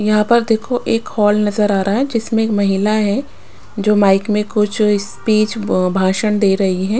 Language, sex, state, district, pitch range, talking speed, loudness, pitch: Hindi, female, Punjab, Pathankot, 200-220 Hz, 190 wpm, -15 LUFS, 210 Hz